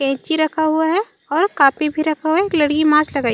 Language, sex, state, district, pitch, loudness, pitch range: Chhattisgarhi, female, Chhattisgarh, Raigarh, 315 Hz, -17 LUFS, 300-325 Hz